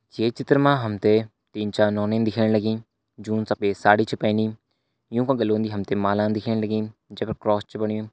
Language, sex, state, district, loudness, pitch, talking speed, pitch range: Hindi, male, Uttarakhand, Uttarkashi, -23 LUFS, 110 Hz, 205 wpm, 105-110 Hz